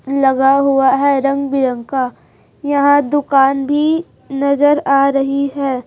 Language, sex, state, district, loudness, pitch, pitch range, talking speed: Hindi, female, Chhattisgarh, Raipur, -14 LUFS, 275 Hz, 270-285 Hz, 135 wpm